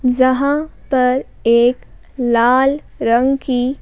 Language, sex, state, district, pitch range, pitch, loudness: Hindi, female, Madhya Pradesh, Bhopal, 245-270 Hz, 255 Hz, -16 LUFS